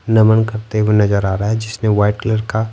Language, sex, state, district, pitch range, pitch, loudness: Hindi, male, Bihar, Patna, 105-110 Hz, 110 Hz, -16 LUFS